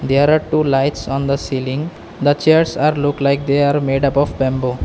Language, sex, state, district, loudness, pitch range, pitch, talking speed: English, male, Assam, Kamrup Metropolitan, -16 LUFS, 135-145 Hz, 140 Hz, 225 wpm